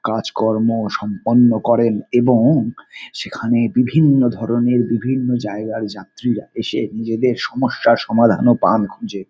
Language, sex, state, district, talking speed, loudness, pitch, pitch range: Bengali, male, West Bengal, Paschim Medinipur, 105 wpm, -17 LUFS, 115 Hz, 110-120 Hz